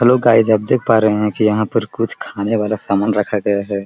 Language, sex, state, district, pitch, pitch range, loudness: Hindi, male, Chhattisgarh, Korba, 105 Hz, 105-115 Hz, -16 LUFS